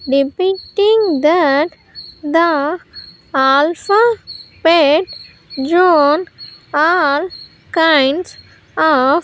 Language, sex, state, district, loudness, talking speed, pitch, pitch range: English, female, Andhra Pradesh, Sri Satya Sai, -14 LUFS, 65 wpm, 320 Hz, 290-360 Hz